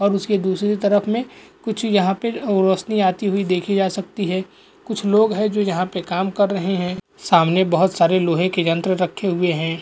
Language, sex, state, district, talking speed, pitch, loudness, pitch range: Hindi, male, Goa, North and South Goa, 215 wpm, 190 Hz, -19 LUFS, 180-205 Hz